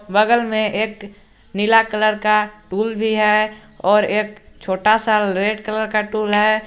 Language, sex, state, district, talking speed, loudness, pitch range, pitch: Hindi, male, Jharkhand, Garhwa, 160 wpm, -18 LUFS, 210-215 Hz, 215 Hz